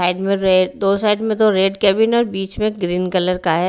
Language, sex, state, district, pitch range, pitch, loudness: Hindi, female, Bihar, Patna, 185-210 Hz, 195 Hz, -17 LUFS